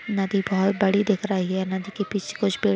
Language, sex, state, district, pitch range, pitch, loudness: Hindi, female, Uttar Pradesh, Deoria, 190-205 Hz, 195 Hz, -24 LUFS